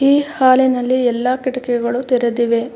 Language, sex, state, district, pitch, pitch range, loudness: Kannada, female, Karnataka, Mysore, 250 Hz, 240-260 Hz, -16 LUFS